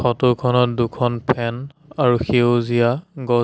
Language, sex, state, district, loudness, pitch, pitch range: Assamese, male, Assam, Sonitpur, -19 LUFS, 120 Hz, 120-130 Hz